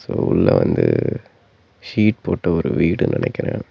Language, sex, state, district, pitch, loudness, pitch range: Tamil, male, Tamil Nadu, Namakkal, 120 Hz, -19 LUFS, 105-125 Hz